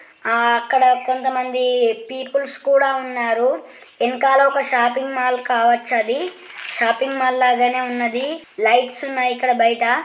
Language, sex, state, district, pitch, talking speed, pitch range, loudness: Telugu, female, Andhra Pradesh, Guntur, 250 Hz, 120 wpm, 240-265 Hz, -18 LUFS